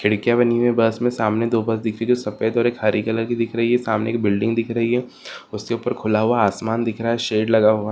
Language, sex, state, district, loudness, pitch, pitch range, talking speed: Marwari, male, Rajasthan, Nagaur, -20 LUFS, 115 Hz, 110-120 Hz, 280 wpm